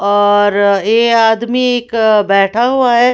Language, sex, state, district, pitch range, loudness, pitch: Hindi, female, Maharashtra, Washim, 205-240 Hz, -11 LUFS, 225 Hz